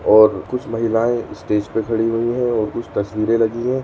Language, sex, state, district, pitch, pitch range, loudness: Bhojpuri, male, Uttar Pradesh, Gorakhpur, 115 Hz, 110-120 Hz, -19 LUFS